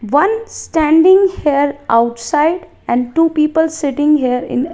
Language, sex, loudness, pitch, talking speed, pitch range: English, female, -14 LUFS, 300 Hz, 140 wpm, 255-325 Hz